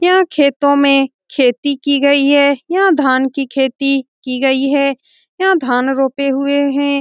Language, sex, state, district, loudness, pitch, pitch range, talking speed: Hindi, female, Bihar, Saran, -14 LUFS, 280 Hz, 270-285 Hz, 165 wpm